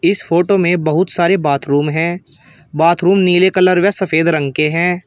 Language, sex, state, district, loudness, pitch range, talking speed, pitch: Hindi, male, Uttar Pradesh, Shamli, -14 LUFS, 155-185 Hz, 175 wpm, 175 Hz